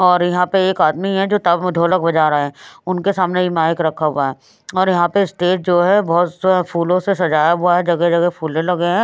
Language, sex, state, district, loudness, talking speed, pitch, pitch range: Hindi, female, Haryana, Rohtak, -16 LUFS, 245 wpm, 175 Hz, 170-185 Hz